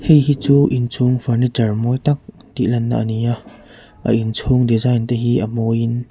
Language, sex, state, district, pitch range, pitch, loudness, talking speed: Mizo, male, Mizoram, Aizawl, 115-125 Hz, 120 Hz, -17 LUFS, 175 wpm